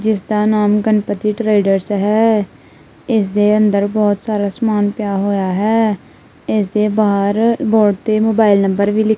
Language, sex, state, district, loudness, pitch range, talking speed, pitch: Punjabi, female, Punjab, Kapurthala, -15 LUFS, 205-215 Hz, 155 wpm, 210 Hz